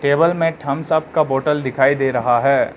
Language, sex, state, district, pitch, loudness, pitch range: Hindi, male, Arunachal Pradesh, Lower Dibang Valley, 140 Hz, -17 LUFS, 135-155 Hz